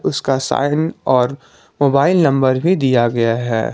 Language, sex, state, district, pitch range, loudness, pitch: Hindi, male, Jharkhand, Garhwa, 125-145 Hz, -16 LUFS, 135 Hz